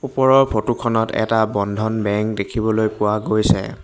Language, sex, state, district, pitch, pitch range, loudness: Assamese, male, Assam, Hailakandi, 110 Hz, 105-115 Hz, -18 LUFS